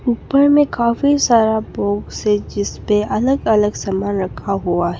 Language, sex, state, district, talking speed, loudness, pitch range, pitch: Hindi, female, Arunachal Pradesh, Papum Pare, 155 wpm, -17 LUFS, 200-240 Hz, 210 Hz